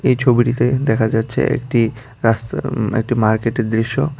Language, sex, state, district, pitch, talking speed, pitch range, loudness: Bengali, female, Tripura, West Tripura, 120 Hz, 145 wpm, 115-130 Hz, -17 LUFS